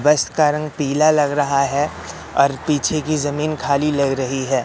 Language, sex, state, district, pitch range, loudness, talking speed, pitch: Hindi, male, Madhya Pradesh, Katni, 135-150 Hz, -18 LUFS, 195 wpm, 145 Hz